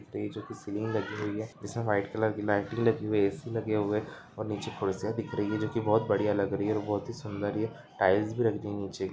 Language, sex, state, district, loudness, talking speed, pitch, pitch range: Hindi, male, Jharkhand, Sahebganj, -31 LUFS, 300 wpm, 105 Hz, 100-110 Hz